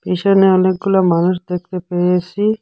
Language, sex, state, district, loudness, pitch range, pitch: Bengali, female, Assam, Hailakandi, -15 LUFS, 180-195 Hz, 185 Hz